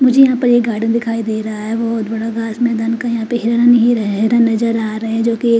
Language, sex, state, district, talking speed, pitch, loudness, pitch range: Hindi, female, Chandigarh, Chandigarh, 265 wpm, 230 Hz, -15 LUFS, 225-235 Hz